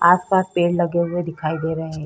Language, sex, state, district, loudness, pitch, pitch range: Hindi, female, Uttar Pradesh, Jyotiba Phule Nagar, -20 LUFS, 170 Hz, 160-175 Hz